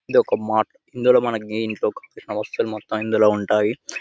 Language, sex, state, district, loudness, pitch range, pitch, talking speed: Telugu, male, Telangana, Nalgonda, -21 LUFS, 110-120 Hz, 110 Hz, 165 wpm